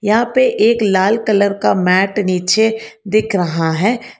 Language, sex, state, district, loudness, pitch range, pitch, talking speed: Hindi, female, Karnataka, Bangalore, -14 LUFS, 185-225 Hz, 210 Hz, 155 wpm